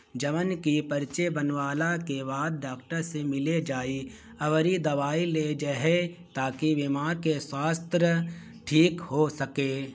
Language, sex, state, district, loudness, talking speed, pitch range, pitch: Bhojpuri, male, Bihar, Gopalganj, -28 LUFS, 140 wpm, 140-165 Hz, 150 Hz